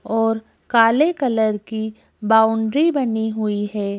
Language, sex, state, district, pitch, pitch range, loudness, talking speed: Hindi, female, Madhya Pradesh, Bhopal, 220 Hz, 220-230 Hz, -19 LUFS, 120 wpm